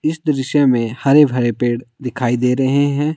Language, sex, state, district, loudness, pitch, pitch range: Hindi, male, Himachal Pradesh, Shimla, -16 LUFS, 130 Hz, 125-145 Hz